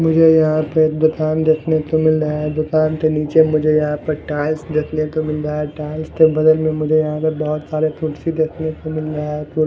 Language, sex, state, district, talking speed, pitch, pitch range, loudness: Hindi, male, Punjab, Fazilka, 230 wpm, 155 Hz, 150-155 Hz, -17 LUFS